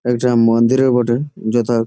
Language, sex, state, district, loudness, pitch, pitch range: Bengali, male, West Bengal, Jalpaiguri, -15 LUFS, 120 Hz, 115-125 Hz